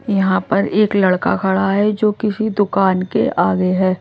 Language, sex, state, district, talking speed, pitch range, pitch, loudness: Hindi, male, Odisha, Malkangiri, 180 wpm, 185-210 Hz, 195 Hz, -16 LUFS